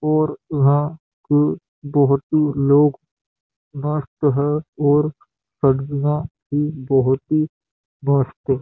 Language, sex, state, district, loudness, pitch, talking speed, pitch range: Hindi, male, Chhattisgarh, Bastar, -19 LUFS, 145 Hz, 90 wpm, 140-150 Hz